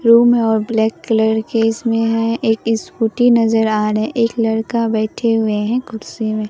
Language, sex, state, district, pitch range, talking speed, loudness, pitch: Hindi, male, Bihar, Katihar, 220-230 Hz, 195 wpm, -16 LUFS, 225 Hz